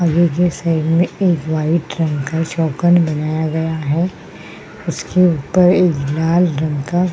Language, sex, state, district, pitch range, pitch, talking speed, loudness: Hindi, female, Uttarakhand, Tehri Garhwal, 155-175 Hz, 165 Hz, 170 wpm, -16 LUFS